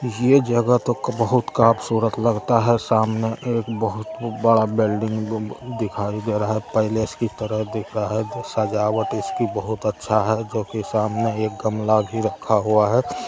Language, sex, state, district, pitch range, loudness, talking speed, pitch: Maithili, male, Bihar, Samastipur, 110-115 Hz, -21 LUFS, 165 wpm, 110 Hz